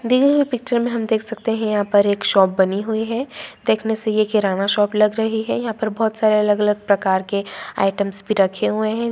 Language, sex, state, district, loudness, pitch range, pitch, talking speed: Hindi, female, Bihar, Darbhanga, -19 LUFS, 200-225 Hz, 215 Hz, 230 wpm